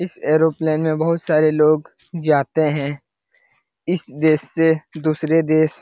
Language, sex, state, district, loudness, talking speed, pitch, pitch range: Hindi, male, Bihar, Lakhisarai, -18 LUFS, 145 wpm, 155 Hz, 155-160 Hz